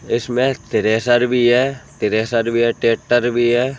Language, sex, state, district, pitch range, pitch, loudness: Hindi, male, Jharkhand, Sahebganj, 115-125 Hz, 120 Hz, -17 LUFS